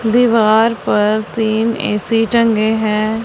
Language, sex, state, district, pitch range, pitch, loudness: Hindi, female, Punjab, Pathankot, 215-230 Hz, 220 Hz, -14 LUFS